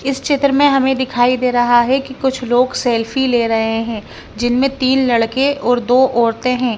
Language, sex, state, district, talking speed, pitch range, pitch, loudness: Hindi, female, Himachal Pradesh, Shimla, 195 wpm, 240-265 Hz, 250 Hz, -15 LUFS